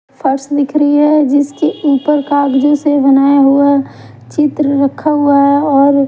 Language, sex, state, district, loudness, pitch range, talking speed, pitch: Hindi, female, Himachal Pradesh, Shimla, -11 LUFS, 280-295 Hz, 150 wpm, 285 Hz